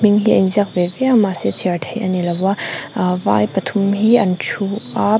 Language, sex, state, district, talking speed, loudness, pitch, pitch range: Mizo, female, Mizoram, Aizawl, 240 wpm, -17 LUFS, 200 Hz, 180-210 Hz